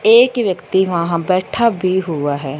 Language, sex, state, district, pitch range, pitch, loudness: Hindi, female, Punjab, Fazilka, 170-195 Hz, 185 Hz, -16 LUFS